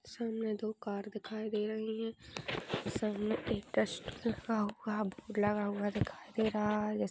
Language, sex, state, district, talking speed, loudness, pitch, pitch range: Hindi, female, Bihar, Purnia, 160 wpm, -37 LUFS, 215 Hz, 210-220 Hz